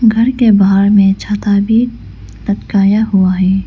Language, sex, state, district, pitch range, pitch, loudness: Hindi, female, Arunachal Pradesh, Lower Dibang Valley, 195-220 Hz, 205 Hz, -11 LUFS